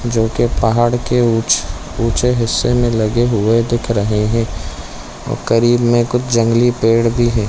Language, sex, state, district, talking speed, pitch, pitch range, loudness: Hindi, male, Chhattisgarh, Bilaspur, 150 wpm, 115 Hz, 115-120 Hz, -15 LUFS